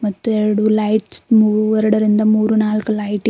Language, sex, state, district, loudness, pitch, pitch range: Kannada, female, Karnataka, Bidar, -16 LUFS, 215 Hz, 210-215 Hz